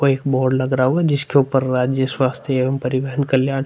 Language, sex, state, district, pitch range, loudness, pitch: Hindi, male, Uttar Pradesh, Hamirpur, 130-135 Hz, -18 LUFS, 130 Hz